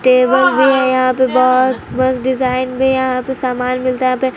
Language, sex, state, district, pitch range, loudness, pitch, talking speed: Hindi, female, Jharkhand, Palamu, 255-260 Hz, -14 LUFS, 255 Hz, 220 wpm